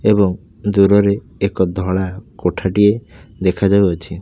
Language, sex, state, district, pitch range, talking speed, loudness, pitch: Odia, male, Odisha, Khordha, 95-100 Hz, 85 wpm, -16 LUFS, 100 Hz